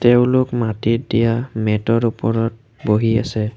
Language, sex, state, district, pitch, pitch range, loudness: Assamese, male, Assam, Kamrup Metropolitan, 115 Hz, 110-120 Hz, -18 LUFS